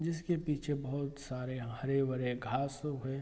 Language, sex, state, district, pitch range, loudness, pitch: Hindi, male, Bihar, East Champaran, 130-145 Hz, -36 LUFS, 135 Hz